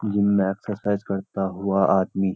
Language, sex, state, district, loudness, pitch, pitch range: Hindi, male, Uttarakhand, Uttarkashi, -23 LUFS, 100 Hz, 95-100 Hz